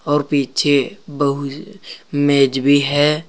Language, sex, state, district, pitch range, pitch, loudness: Hindi, male, Uttar Pradesh, Saharanpur, 140-145 Hz, 145 Hz, -16 LUFS